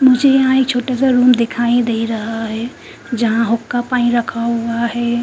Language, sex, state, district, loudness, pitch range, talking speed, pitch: Hindi, female, Haryana, Charkhi Dadri, -16 LUFS, 230-250 Hz, 185 wpm, 235 Hz